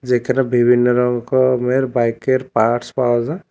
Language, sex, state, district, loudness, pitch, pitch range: Bengali, male, Tripura, West Tripura, -17 LUFS, 125 Hz, 120-130 Hz